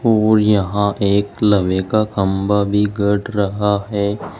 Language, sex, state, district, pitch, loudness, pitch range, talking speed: Hindi, male, Uttar Pradesh, Saharanpur, 100 Hz, -17 LUFS, 100-105 Hz, 135 wpm